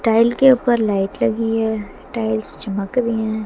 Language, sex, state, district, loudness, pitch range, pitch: Hindi, female, Haryana, Jhajjar, -18 LUFS, 205-230 Hz, 220 Hz